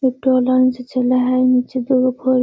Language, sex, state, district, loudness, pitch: Magahi, female, Bihar, Gaya, -16 LUFS, 255 Hz